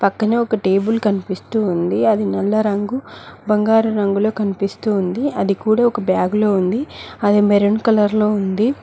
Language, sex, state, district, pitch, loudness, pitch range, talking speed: Telugu, female, Telangana, Mahabubabad, 210 Hz, -17 LUFS, 200-220 Hz, 150 wpm